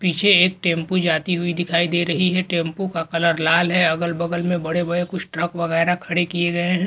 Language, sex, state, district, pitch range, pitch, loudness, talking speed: Hindi, male, Bihar, Lakhisarai, 170-180 Hz, 175 Hz, -20 LUFS, 235 wpm